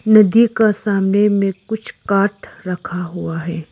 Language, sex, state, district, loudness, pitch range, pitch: Hindi, female, Arunachal Pradesh, Lower Dibang Valley, -17 LUFS, 175-215 Hz, 195 Hz